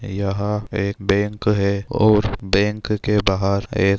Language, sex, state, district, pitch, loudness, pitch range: Hindi, male, Chhattisgarh, Raigarh, 100 Hz, -20 LUFS, 100-105 Hz